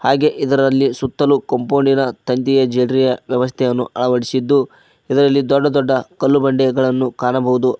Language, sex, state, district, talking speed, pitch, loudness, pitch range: Kannada, male, Karnataka, Koppal, 110 wpm, 130 Hz, -16 LUFS, 125-140 Hz